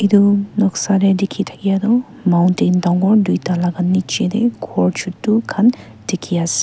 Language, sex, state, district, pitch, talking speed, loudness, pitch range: Nagamese, female, Nagaland, Kohima, 195 Hz, 165 wpm, -16 LUFS, 180-205 Hz